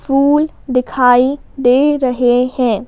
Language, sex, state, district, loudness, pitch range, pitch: Hindi, female, Madhya Pradesh, Bhopal, -13 LUFS, 245-275 Hz, 255 Hz